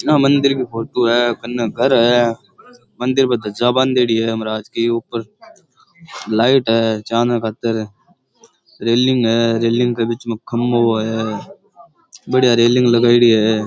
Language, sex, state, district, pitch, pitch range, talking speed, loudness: Rajasthani, male, Rajasthan, Churu, 120 Hz, 115-125 Hz, 140 wpm, -16 LUFS